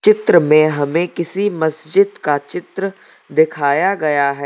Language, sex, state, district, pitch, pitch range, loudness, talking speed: Hindi, male, Uttar Pradesh, Lucknow, 160 Hz, 145-190 Hz, -16 LUFS, 135 wpm